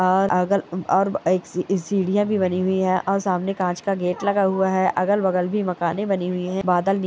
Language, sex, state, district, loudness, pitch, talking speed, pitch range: Hindi, male, Chhattisgarh, Bastar, -21 LUFS, 190 Hz, 235 wpm, 180-195 Hz